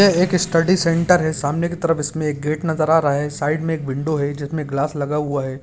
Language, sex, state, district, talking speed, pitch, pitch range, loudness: Hindi, male, Uttarakhand, Uttarkashi, 265 wpm, 155 Hz, 145-165 Hz, -19 LUFS